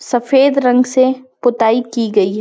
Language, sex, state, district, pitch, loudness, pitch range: Hindi, female, Chhattisgarh, Balrampur, 245 Hz, -14 LUFS, 230-260 Hz